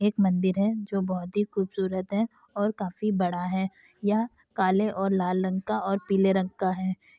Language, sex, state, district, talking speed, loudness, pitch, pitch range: Hindi, female, Uttar Pradesh, Jalaun, 185 wpm, -27 LUFS, 195 Hz, 185-205 Hz